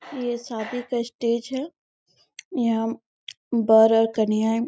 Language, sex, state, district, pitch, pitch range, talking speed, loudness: Hindi, female, Chhattisgarh, Bastar, 235 Hz, 225-245 Hz, 115 wpm, -23 LUFS